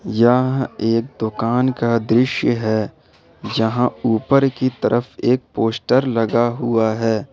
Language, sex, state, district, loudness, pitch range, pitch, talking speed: Hindi, male, Jharkhand, Ranchi, -18 LUFS, 110-125 Hz, 120 Hz, 125 wpm